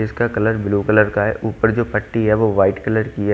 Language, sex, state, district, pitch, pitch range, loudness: Hindi, male, Haryana, Jhajjar, 110 Hz, 105-110 Hz, -17 LUFS